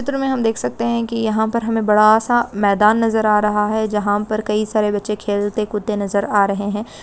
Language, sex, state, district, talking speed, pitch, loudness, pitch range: Hindi, female, West Bengal, Purulia, 240 wpm, 215 Hz, -18 LUFS, 210-225 Hz